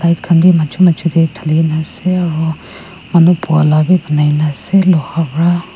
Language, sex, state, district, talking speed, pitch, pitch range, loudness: Nagamese, female, Nagaland, Kohima, 200 wpm, 165 Hz, 155-175 Hz, -12 LUFS